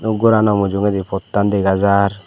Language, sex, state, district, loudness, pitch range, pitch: Chakma, male, Tripura, Dhalai, -16 LUFS, 100-105 Hz, 100 Hz